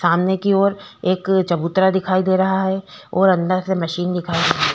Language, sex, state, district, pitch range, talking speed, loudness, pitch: Hindi, female, Chhattisgarh, Korba, 180-190 Hz, 215 wpm, -18 LUFS, 190 Hz